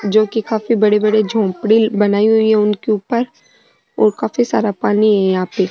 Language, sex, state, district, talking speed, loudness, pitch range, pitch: Rajasthani, female, Rajasthan, Nagaur, 190 wpm, -15 LUFS, 205-220 Hz, 215 Hz